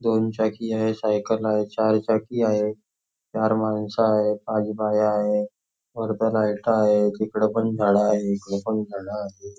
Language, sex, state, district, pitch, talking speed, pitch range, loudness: Marathi, male, Maharashtra, Nagpur, 110 Hz, 140 wpm, 105-110 Hz, -23 LUFS